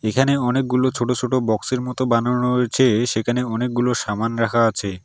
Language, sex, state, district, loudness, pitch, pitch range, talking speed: Bengali, male, West Bengal, Alipurduar, -20 LUFS, 125 Hz, 115-125 Hz, 165 wpm